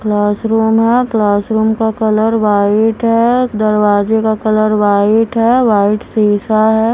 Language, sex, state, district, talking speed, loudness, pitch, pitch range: Hindi, female, Himachal Pradesh, Shimla, 130 wpm, -12 LUFS, 220 Hz, 210-225 Hz